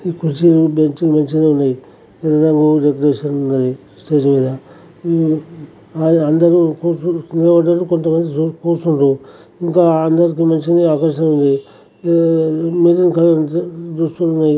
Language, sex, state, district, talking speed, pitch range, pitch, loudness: Telugu, male, Telangana, Karimnagar, 95 wpm, 150-170 Hz, 160 Hz, -14 LUFS